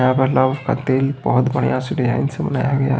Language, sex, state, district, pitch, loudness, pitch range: Hindi, male, Odisha, Khordha, 130 Hz, -18 LUFS, 130-135 Hz